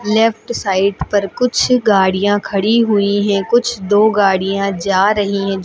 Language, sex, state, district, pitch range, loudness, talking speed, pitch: Hindi, female, Uttar Pradesh, Lucknow, 195-220 Hz, -14 LUFS, 150 wpm, 205 Hz